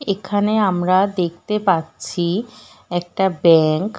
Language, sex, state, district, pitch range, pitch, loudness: Bengali, female, West Bengal, Dakshin Dinajpur, 175-205 Hz, 190 Hz, -18 LUFS